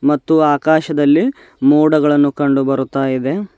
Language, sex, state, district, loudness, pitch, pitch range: Kannada, male, Karnataka, Bidar, -14 LUFS, 145 Hz, 135-155 Hz